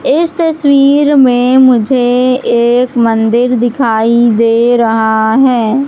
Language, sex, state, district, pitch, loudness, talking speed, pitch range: Hindi, female, Madhya Pradesh, Katni, 245 Hz, -9 LUFS, 100 wpm, 230-265 Hz